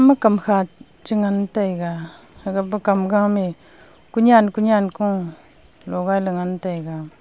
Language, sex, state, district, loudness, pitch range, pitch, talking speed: Wancho, female, Arunachal Pradesh, Longding, -20 LUFS, 180-210 Hz, 195 Hz, 115 wpm